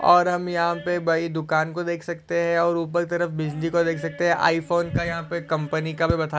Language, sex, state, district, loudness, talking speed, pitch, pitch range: Hindi, male, Maharashtra, Solapur, -23 LUFS, 255 wpm, 170 Hz, 165-170 Hz